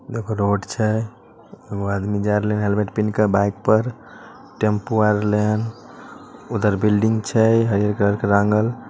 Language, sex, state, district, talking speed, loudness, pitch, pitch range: Magahi, male, Bihar, Samastipur, 155 wpm, -20 LUFS, 105 Hz, 100-110 Hz